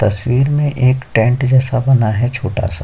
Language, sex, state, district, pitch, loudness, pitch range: Hindi, male, Chhattisgarh, Kabirdham, 125 Hz, -14 LUFS, 110-130 Hz